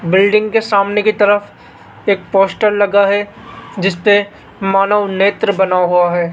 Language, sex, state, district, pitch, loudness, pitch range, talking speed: Hindi, male, Rajasthan, Jaipur, 200 Hz, -13 LUFS, 190-205 Hz, 140 wpm